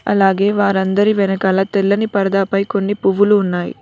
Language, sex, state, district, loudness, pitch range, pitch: Telugu, female, Telangana, Mahabubabad, -15 LUFS, 195-205 Hz, 195 Hz